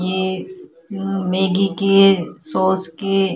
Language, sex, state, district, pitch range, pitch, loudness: Hindi, female, Chhattisgarh, Kabirdham, 185-195 Hz, 190 Hz, -18 LUFS